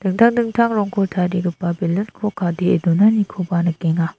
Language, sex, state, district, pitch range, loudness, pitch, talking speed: Garo, female, Meghalaya, South Garo Hills, 175-210 Hz, -18 LUFS, 185 Hz, 130 wpm